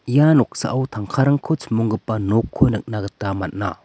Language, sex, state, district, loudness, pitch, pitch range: Garo, male, Meghalaya, West Garo Hills, -20 LUFS, 115 Hz, 100-135 Hz